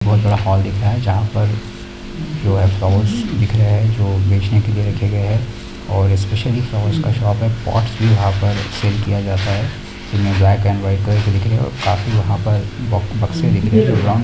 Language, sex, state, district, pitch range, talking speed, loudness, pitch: Hindi, male, Chhattisgarh, Bastar, 100-110 Hz, 200 wpm, -17 LUFS, 105 Hz